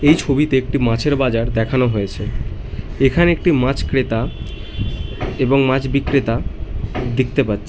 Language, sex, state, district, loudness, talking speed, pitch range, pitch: Bengali, male, West Bengal, North 24 Parganas, -18 LUFS, 125 wpm, 110-135 Hz, 125 Hz